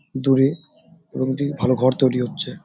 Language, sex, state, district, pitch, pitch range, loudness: Bengali, male, West Bengal, Jalpaiguri, 130 Hz, 130-140 Hz, -20 LUFS